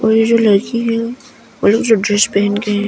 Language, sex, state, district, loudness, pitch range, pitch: Hindi, female, Arunachal Pradesh, Papum Pare, -14 LUFS, 205-230 Hz, 220 Hz